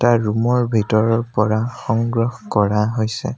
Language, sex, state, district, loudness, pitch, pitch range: Assamese, male, Assam, Sonitpur, -19 LUFS, 115 Hz, 110-120 Hz